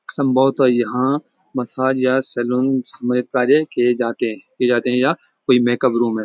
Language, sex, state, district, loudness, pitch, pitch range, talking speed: Hindi, male, Uttarakhand, Uttarkashi, -18 LUFS, 125 Hz, 120-130 Hz, 170 wpm